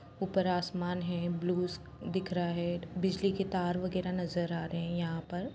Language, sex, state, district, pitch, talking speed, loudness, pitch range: Hindi, female, Jharkhand, Jamtara, 180 Hz, 185 wpm, -34 LUFS, 175-185 Hz